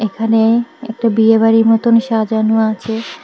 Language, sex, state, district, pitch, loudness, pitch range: Bengali, female, Tripura, West Tripura, 225 Hz, -13 LUFS, 220-230 Hz